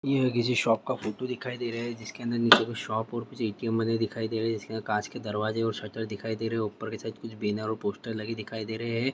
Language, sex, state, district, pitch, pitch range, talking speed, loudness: Hindi, male, Bihar, Vaishali, 115 Hz, 110-120 Hz, 265 wpm, -29 LUFS